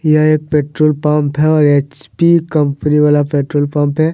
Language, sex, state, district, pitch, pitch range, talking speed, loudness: Hindi, male, Jharkhand, Deoghar, 150 Hz, 145-155 Hz, 175 wpm, -13 LUFS